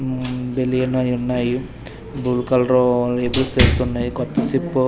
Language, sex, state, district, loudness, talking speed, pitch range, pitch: Telugu, male, Andhra Pradesh, Manyam, -19 LUFS, 110 wpm, 125-130 Hz, 125 Hz